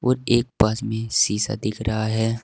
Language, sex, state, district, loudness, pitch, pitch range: Hindi, male, Uttar Pradesh, Saharanpur, -22 LUFS, 110 Hz, 110-120 Hz